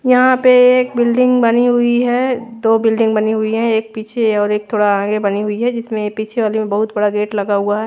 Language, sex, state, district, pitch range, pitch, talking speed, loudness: Hindi, female, Haryana, Rohtak, 210-240 Hz, 220 Hz, 235 wpm, -15 LUFS